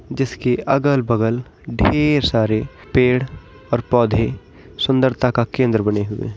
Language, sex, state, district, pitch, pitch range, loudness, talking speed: Hindi, male, Bihar, East Champaran, 120 Hz, 110-130 Hz, -18 LUFS, 120 wpm